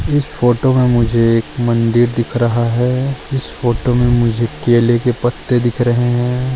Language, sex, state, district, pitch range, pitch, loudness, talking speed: Hindi, male, Goa, North and South Goa, 120-125 Hz, 120 Hz, -15 LUFS, 175 wpm